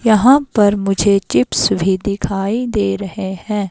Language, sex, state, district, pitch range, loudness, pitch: Hindi, female, Himachal Pradesh, Shimla, 190-210 Hz, -15 LUFS, 200 Hz